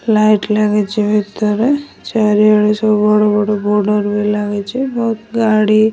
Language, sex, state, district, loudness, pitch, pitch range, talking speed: Odia, male, Odisha, Nuapada, -14 LUFS, 210 Hz, 210-220 Hz, 120 wpm